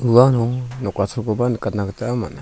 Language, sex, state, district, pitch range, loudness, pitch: Garo, male, Meghalaya, South Garo Hills, 100-125 Hz, -20 LUFS, 115 Hz